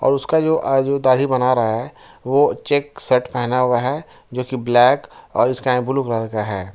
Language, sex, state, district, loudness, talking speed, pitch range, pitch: Hindi, male, Jharkhand, Ranchi, -18 LUFS, 215 wpm, 120-135 Hz, 130 Hz